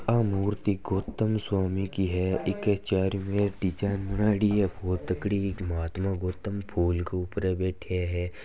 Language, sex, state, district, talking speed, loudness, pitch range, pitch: Marwari, male, Rajasthan, Nagaur, 140 wpm, -28 LUFS, 90-100 Hz, 95 Hz